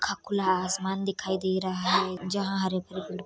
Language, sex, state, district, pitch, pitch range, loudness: Hindi, female, Bihar, Saharsa, 190 Hz, 185-195 Hz, -28 LUFS